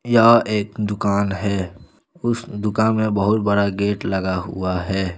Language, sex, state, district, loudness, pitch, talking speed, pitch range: Hindi, male, Jharkhand, Deoghar, -20 LUFS, 100 Hz, 150 wpm, 95-110 Hz